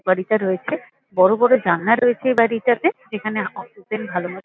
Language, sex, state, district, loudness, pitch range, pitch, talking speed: Bengali, female, West Bengal, Kolkata, -19 LUFS, 190-245 Hz, 215 Hz, 160 wpm